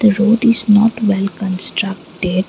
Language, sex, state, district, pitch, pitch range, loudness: English, female, Assam, Kamrup Metropolitan, 205 Hz, 190-220 Hz, -15 LUFS